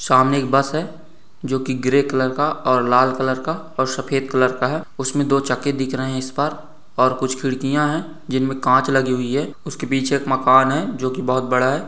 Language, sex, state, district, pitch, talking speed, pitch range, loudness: Hindi, male, Bihar, Saran, 135 Hz, 225 wpm, 130-145 Hz, -19 LUFS